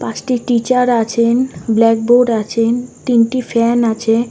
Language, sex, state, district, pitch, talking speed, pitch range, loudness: Bengali, female, West Bengal, North 24 Parganas, 235 Hz, 125 wpm, 230-245 Hz, -14 LUFS